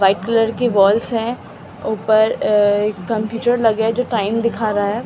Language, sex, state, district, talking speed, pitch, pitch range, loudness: Hindi, female, Delhi, New Delhi, 165 wpm, 220 Hz, 210-230 Hz, -17 LUFS